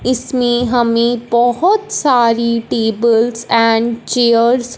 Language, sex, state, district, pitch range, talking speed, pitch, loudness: Hindi, female, Punjab, Fazilka, 230-245 Hz, 100 wpm, 235 Hz, -14 LUFS